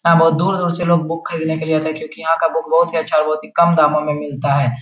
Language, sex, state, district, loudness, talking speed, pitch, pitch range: Hindi, male, Bihar, Jahanabad, -17 LUFS, 325 wpm, 160 Hz, 155-165 Hz